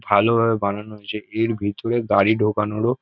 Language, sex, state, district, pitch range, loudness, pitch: Bengali, male, West Bengal, North 24 Parganas, 105-115 Hz, -21 LUFS, 105 Hz